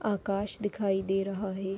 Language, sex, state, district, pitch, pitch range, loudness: Hindi, female, Uttar Pradesh, Etah, 195 Hz, 195-205 Hz, -31 LUFS